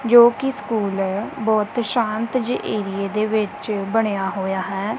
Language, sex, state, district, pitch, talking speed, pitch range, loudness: Punjabi, female, Punjab, Kapurthala, 215 Hz, 145 wpm, 200-235 Hz, -21 LUFS